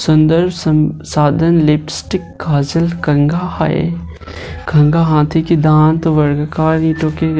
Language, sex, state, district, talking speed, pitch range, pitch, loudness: Hindi, female, Bihar, Gopalganj, 90 wpm, 150-165 Hz, 155 Hz, -13 LUFS